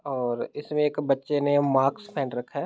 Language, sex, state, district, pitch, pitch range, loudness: Hindi, male, Bihar, Muzaffarpur, 140 Hz, 135-145 Hz, -26 LUFS